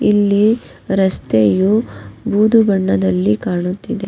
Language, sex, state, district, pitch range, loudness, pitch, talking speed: Kannada, female, Karnataka, Raichur, 175-215 Hz, -15 LUFS, 195 Hz, 75 wpm